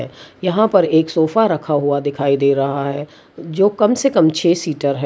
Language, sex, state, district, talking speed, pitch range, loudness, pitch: Hindi, female, Gujarat, Valsad, 200 wpm, 140-190 Hz, -16 LUFS, 160 Hz